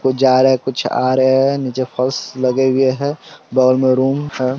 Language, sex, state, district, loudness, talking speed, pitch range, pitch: Hindi, male, Bihar, Sitamarhi, -16 LUFS, 220 wpm, 130-135 Hz, 130 Hz